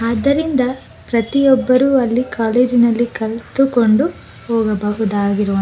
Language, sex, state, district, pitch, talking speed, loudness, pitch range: Kannada, female, Karnataka, Bellary, 235 Hz, 75 wpm, -16 LUFS, 220-260 Hz